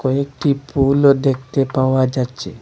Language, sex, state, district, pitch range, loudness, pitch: Bengali, male, Assam, Hailakandi, 130-140 Hz, -17 LUFS, 135 Hz